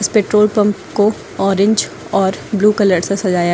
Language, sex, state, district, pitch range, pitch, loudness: Hindi, female, Uttar Pradesh, Lucknow, 195-210 Hz, 205 Hz, -15 LUFS